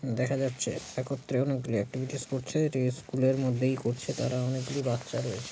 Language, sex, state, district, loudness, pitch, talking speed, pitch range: Bengali, male, West Bengal, Jalpaiguri, -31 LUFS, 130 Hz, 185 wpm, 125-135 Hz